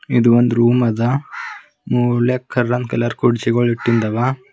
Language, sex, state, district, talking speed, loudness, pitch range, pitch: Kannada, male, Karnataka, Bidar, 120 wpm, -17 LUFS, 120-125 Hz, 120 Hz